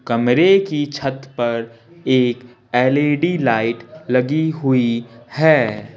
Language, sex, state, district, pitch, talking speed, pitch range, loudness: Hindi, male, Bihar, Patna, 130 Hz, 100 wpm, 120-150 Hz, -17 LUFS